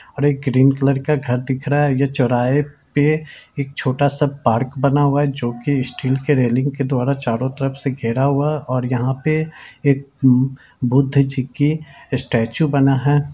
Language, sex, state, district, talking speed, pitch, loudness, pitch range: Hindi, male, Bihar, Jamui, 180 wpm, 135 Hz, -18 LUFS, 130-145 Hz